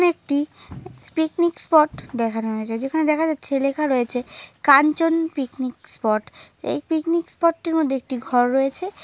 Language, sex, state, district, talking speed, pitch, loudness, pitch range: Bengali, female, West Bengal, Dakshin Dinajpur, 140 wpm, 290 Hz, -21 LUFS, 255-320 Hz